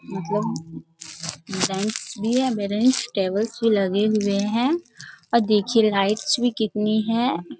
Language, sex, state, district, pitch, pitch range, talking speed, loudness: Hindi, female, Bihar, Bhagalpur, 215 Hz, 195-230 Hz, 125 wpm, -22 LUFS